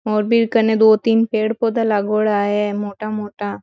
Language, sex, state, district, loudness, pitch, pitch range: Marwari, female, Rajasthan, Nagaur, -17 LUFS, 215 Hz, 210-225 Hz